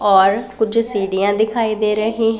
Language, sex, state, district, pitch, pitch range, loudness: Hindi, female, Punjab, Pathankot, 215 Hz, 200-225 Hz, -17 LUFS